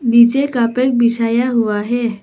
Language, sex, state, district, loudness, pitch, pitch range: Hindi, female, Arunachal Pradesh, Papum Pare, -15 LUFS, 235 Hz, 230-245 Hz